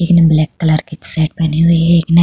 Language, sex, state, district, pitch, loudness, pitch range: Hindi, female, Uttar Pradesh, Hamirpur, 165 Hz, -13 LUFS, 155-170 Hz